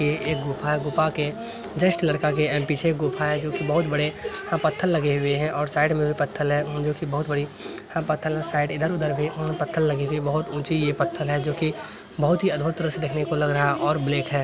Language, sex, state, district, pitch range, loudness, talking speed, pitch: Hindi, male, Bihar, Bhagalpur, 145-160 Hz, -24 LUFS, 240 wpm, 150 Hz